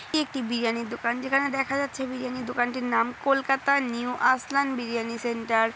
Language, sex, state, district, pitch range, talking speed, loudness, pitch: Bengali, female, West Bengal, Purulia, 235-270 Hz, 155 wpm, -26 LUFS, 250 Hz